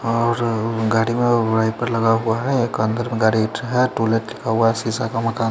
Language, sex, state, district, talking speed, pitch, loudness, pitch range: Hindi, male, Chandigarh, Chandigarh, 230 wpm, 115 Hz, -19 LUFS, 110-120 Hz